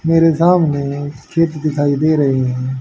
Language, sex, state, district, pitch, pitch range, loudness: Hindi, male, Haryana, Jhajjar, 145 Hz, 140-165 Hz, -15 LUFS